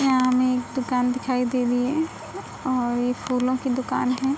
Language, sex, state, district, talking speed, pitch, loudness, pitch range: Hindi, female, Bihar, Gopalganj, 190 wpm, 255 Hz, -24 LUFS, 250-260 Hz